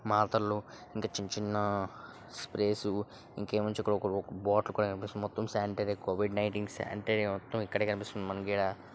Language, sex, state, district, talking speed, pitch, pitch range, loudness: Telugu, male, Andhra Pradesh, Srikakulam, 140 wpm, 105 Hz, 100-105 Hz, -34 LUFS